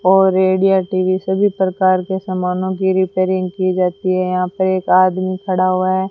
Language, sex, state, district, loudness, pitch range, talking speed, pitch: Hindi, female, Rajasthan, Bikaner, -16 LUFS, 185-190 Hz, 185 wpm, 185 Hz